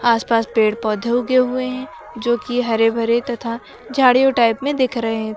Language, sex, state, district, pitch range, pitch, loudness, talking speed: Hindi, female, Uttar Pradesh, Lucknow, 230-255 Hz, 240 Hz, -18 LUFS, 190 wpm